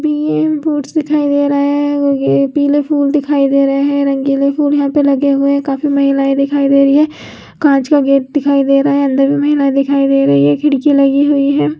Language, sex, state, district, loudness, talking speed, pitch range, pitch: Hindi, female, Chhattisgarh, Raigarh, -12 LUFS, 200 wpm, 275-290 Hz, 280 Hz